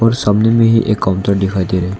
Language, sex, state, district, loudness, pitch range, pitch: Hindi, male, Arunachal Pradesh, Longding, -14 LUFS, 95-115 Hz, 105 Hz